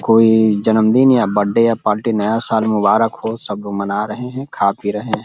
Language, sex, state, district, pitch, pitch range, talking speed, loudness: Hindi, male, Uttar Pradesh, Deoria, 110 Hz, 105-115 Hz, 215 wpm, -16 LUFS